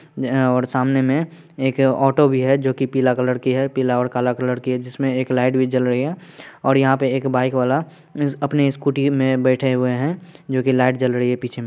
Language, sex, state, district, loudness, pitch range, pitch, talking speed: Hindi, male, Bihar, Saharsa, -19 LUFS, 125-140 Hz, 130 Hz, 235 wpm